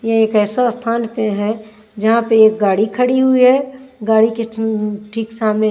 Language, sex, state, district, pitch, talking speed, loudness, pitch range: Hindi, female, Maharashtra, Washim, 225 Hz, 200 wpm, -15 LUFS, 215-235 Hz